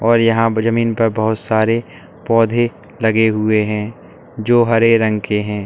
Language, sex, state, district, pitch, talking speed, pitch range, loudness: Hindi, male, Uttar Pradesh, Lalitpur, 110 Hz, 170 wpm, 110-115 Hz, -15 LUFS